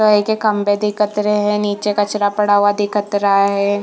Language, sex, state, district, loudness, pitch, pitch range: Hindi, female, Chhattisgarh, Bilaspur, -16 LUFS, 205 Hz, 205-210 Hz